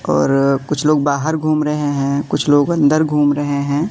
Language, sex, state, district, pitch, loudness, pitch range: Hindi, male, Madhya Pradesh, Katni, 145 Hz, -16 LUFS, 140-150 Hz